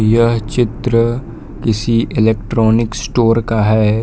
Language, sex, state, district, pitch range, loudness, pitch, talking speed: Hindi, male, Jharkhand, Palamu, 110-120 Hz, -15 LUFS, 115 Hz, 105 wpm